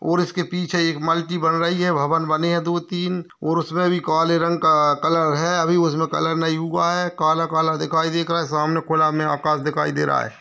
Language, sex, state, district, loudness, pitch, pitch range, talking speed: Hindi, male, Bihar, Kishanganj, -20 LUFS, 165 Hz, 160-170 Hz, 225 wpm